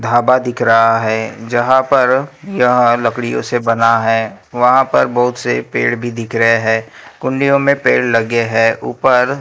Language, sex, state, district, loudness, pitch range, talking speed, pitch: Hindi, male, Maharashtra, Gondia, -14 LUFS, 115-125 Hz, 170 wpm, 120 Hz